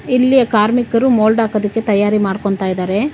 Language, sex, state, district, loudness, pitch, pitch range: Kannada, female, Karnataka, Bangalore, -14 LUFS, 215 Hz, 205-245 Hz